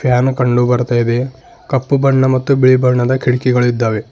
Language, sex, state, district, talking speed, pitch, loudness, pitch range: Kannada, male, Karnataka, Bidar, 145 wpm, 125 Hz, -14 LUFS, 120-130 Hz